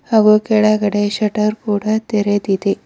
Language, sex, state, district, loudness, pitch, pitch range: Kannada, female, Karnataka, Bidar, -16 LUFS, 210 Hz, 205-215 Hz